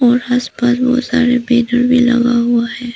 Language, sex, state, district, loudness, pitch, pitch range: Hindi, female, Arunachal Pradesh, Papum Pare, -13 LUFS, 245 Hz, 240-250 Hz